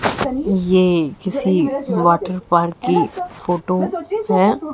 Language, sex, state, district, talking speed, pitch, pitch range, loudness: Hindi, female, Haryana, Jhajjar, 75 wpm, 185 Hz, 175-275 Hz, -18 LUFS